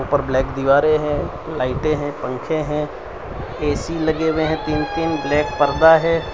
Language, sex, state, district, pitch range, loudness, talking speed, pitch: Hindi, male, Gujarat, Valsad, 140-160 Hz, -19 LUFS, 160 wpm, 150 Hz